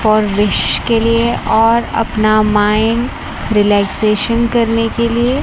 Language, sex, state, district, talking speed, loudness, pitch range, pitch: Hindi, female, Chandigarh, Chandigarh, 120 wpm, -13 LUFS, 215-235 Hz, 225 Hz